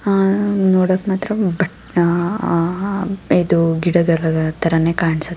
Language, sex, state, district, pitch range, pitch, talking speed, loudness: Kannada, female, Karnataka, Mysore, 165-195 Hz, 175 Hz, 100 wpm, -17 LUFS